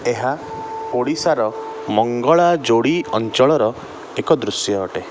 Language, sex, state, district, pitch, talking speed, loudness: Odia, male, Odisha, Khordha, 130 Hz, 95 wpm, -18 LUFS